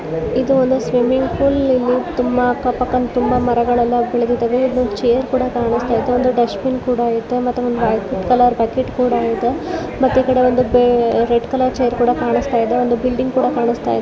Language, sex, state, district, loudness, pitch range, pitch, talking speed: Kannada, female, Karnataka, Dharwad, -16 LUFS, 235-255 Hz, 245 Hz, 85 wpm